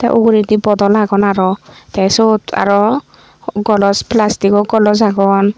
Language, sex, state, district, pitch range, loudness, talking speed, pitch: Chakma, female, Tripura, Unakoti, 200-215 Hz, -12 LUFS, 130 wpm, 210 Hz